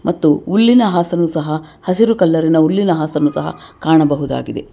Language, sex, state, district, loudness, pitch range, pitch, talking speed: Kannada, female, Karnataka, Bangalore, -14 LUFS, 155-185 Hz, 165 Hz, 140 wpm